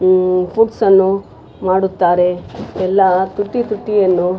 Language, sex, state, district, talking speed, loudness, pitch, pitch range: Kannada, female, Karnataka, Raichur, 95 wpm, -15 LUFS, 190 Hz, 185-200 Hz